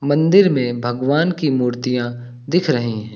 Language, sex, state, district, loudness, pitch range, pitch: Hindi, male, Uttar Pradesh, Lucknow, -18 LUFS, 120-155 Hz, 125 Hz